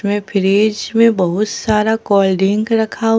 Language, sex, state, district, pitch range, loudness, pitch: Hindi, female, Bihar, Katihar, 200-220 Hz, -15 LUFS, 210 Hz